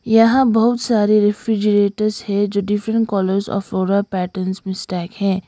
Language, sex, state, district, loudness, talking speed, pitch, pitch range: Hindi, female, Sikkim, Gangtok, -18 LUFS, 155 wpm, 205 Hz, 195-220 Hz